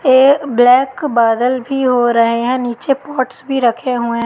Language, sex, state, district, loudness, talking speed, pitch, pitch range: Hindi, female, Madhya Pradesh, Katni, -14 LUFS, 185 wpm, 255 Hz, 240-270 Hz